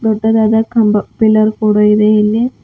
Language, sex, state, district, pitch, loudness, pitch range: Kannada, female, Karnataka, Bidar, 215 Hz, -11 LUFS, 210-225 Hz